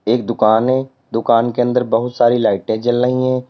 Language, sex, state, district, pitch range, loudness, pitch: Hindi, male, Uttar Pradesh, Lalitpur, 115-125 Hz, -16 LUFS, 120 Hz